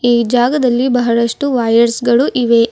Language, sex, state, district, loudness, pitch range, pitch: Kannada, female, Karnataka, Bidar, -13 LUFS, 235-250 Hz, 240 Hz